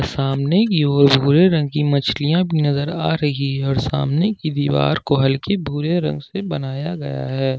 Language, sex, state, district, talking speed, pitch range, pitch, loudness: Hindi, male, Jharkhand, Ranchi, 190 wpm, 135-160 Hz, 145 Hz, -18 LUFS